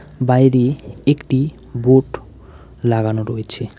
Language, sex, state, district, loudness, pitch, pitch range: Bengali, male, West Bengal, Alipurduar, -17 LUFS, 125 Hz, 110-130 Hz